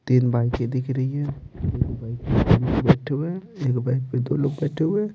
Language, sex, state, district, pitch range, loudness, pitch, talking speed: Hindi, male, Bihar, Patna, 125-145 Hz, -23 LUFS, 130 Hz, 165 wpm